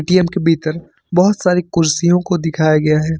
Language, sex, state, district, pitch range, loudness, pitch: Hindi, male, Jharkhand, Ranchi, 155-180 Hz, -15 LUFS, 170 Hz